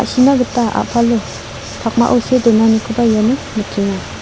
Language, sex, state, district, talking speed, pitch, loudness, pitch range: Garo, female, Meghalaya, South Garo Hills, 115 wpm, 230 Hz, -14 LUFS, 215-240 Hz